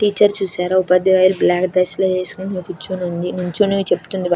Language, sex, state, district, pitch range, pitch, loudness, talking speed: Telugu, female, Andhra Pradesh, Krishna, 180-190 Hz, 185 Hz, -17 LUFS, 135 wpm